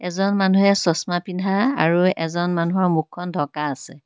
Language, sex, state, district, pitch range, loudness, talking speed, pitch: Assamese, female, Assam, Kamrup Metropolitan, 165-190 Hz, -20 LUFS, 150 wpm, 175 Hz